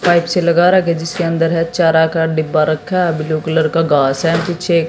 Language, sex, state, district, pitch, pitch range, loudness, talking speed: Hindi, female, Haryana, Jhajjar, 165 Hz, 160-175 Hz, -14 LUFS, 220 wpm